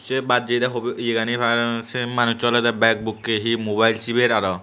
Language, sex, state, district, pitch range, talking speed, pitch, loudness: Chakma, male, Tripura, Unakoti, 115-120 Hz, 195 wpm, 120 Hz, -20 LUFS